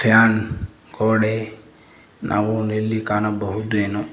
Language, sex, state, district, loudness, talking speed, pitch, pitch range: Kannada, male, Karnataka, Koppal, -20 LUFS, 70 wpm, 110 Hz, 105-110 Hz